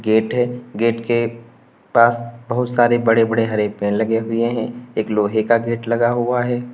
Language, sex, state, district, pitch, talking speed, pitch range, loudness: Hindi, male, Uttar Pradesh, Lalitpur, 115 Hz, 180 wpm, 115-120 Hz, -18 LUFS